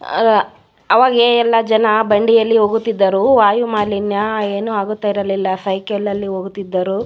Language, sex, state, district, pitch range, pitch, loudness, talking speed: Kannada, female, Karnataka, Bellary, 200-225 Hz, 205 Hz, -15 LUFS, 125 wpm